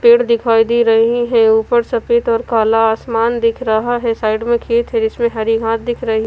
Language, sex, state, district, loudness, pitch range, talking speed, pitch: Hindi, female, Punjab, Fazilka, -14 LUFS, 225-240 Hz, 210 wpm, 235 Hz